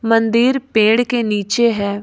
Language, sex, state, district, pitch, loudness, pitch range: Hindi, female, Jharkhand, Ranchi, 225 Hz, -15 LUFS, 215-240 Hz